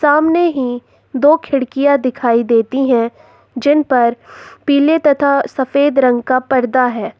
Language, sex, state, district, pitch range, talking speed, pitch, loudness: Hindi, female, Jharkhand, Ranchi, 245-290 Hz, 135 wpm, 265 Hz, -14 LUFS